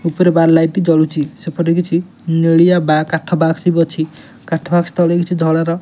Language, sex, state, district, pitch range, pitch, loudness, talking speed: Odia, male, Odisha, Nuapada, 165-175 Hz, 165 Hz, -14 LUFS, 195 wpm